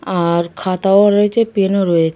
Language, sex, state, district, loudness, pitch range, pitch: Bengali, female, West Bengal, Dakshin Dinajpur, -14 LUFS, 170-205 Hz, 195 Hz